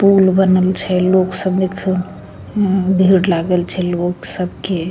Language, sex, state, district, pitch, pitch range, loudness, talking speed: Maithili, female, Bihar, Begusarai, 185 Hz, 180-190 Hz, -15 LUFS, 160 wpm